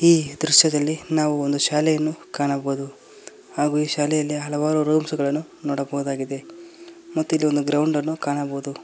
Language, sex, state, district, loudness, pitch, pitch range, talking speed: Kannada, male, Karnataka, Koppal, -21 LUFS, 150 Hz, 145-155 Hz, 130 wpm